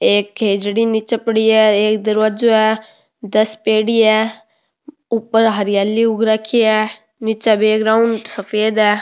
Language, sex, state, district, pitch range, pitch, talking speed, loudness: Rajasthani, male, Rajasthan, Nagaur, 215-225 Hz, 220 Hz, 135 wpm, -15 LUFS